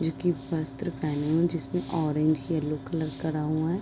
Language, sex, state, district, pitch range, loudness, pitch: Hindi, female, Uttar Pradesh, Deoria, 150-165 Hz, -29 LUFS, 155 Hz